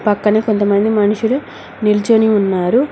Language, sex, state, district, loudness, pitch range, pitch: Telugu, female, Telangana, Mahabubabad, -14 LUFS, 205-225 Hz, 210 Hz